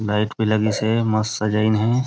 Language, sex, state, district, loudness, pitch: Chhattisgarhi, male, Chhattisgarh, Raigarh, -20 LUFS, 110 Hz